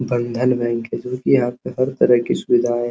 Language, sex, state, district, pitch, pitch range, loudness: Hindi, male, Uttar Pradesh, Hamirpur, 120 Hz, 120-125 Hz, -19 LUFS